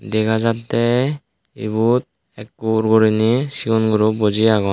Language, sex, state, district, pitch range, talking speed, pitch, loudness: Chakma, male, Tripura, Dhalai, 110-115 Hz, 115 wpm, 110 Hz, -17 LUFS